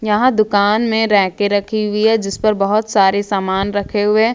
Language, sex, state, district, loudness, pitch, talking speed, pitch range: Hindi, female, Jharkhand, Ranchi, -15 LUFS, 210 Hz, 220 wpm, 200-215 Hz